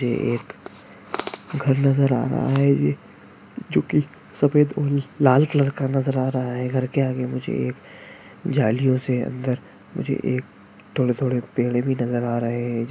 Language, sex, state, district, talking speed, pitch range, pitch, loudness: Bhojpuri, male, Bihar, Saran, 170 wpm, 120-135 Hz, 130 Hz, -22 LUFS